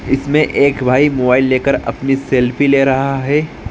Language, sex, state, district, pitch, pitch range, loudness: Hindi, male, Maharashtra, Solapur, 135 Hz, 130-140 Hz, -14 LUFS